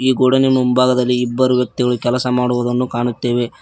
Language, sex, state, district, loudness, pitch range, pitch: Kannada, male, Karnataka, Koppal, -16 LUFS, 120-130 Hz, 125 Hz